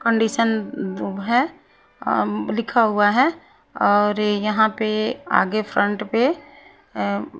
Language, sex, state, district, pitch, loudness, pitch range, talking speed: Hindi, female, Haryana, Rohtak, 220 Hz, -20 LUFS, 205-245 Hz, 115 wpm